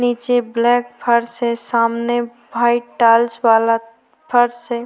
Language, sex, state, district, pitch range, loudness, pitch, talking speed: Hindi, female, Maharashtra, Aurangabad, 230-240 Hz, -17 LUFS, 235 Hz, 125 wpm